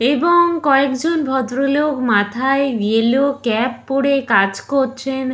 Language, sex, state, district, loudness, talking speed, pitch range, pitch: Bengali, female, West Bengal, Purulia, -16 LUFS, 100 wpm, 245-280 Hz, 270 Hz